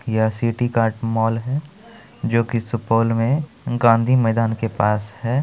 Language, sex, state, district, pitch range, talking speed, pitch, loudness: Maithili, male, Bihar, Supaul, 115-120 Hz, 155 wpm, 115 Hz, -20 LUFS